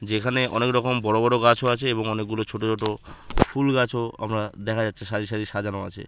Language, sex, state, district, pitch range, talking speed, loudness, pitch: Bengali, male, West Bengal, Malda, 105-125 Hz, 180 wpm, -24 LUFS, 110 Hz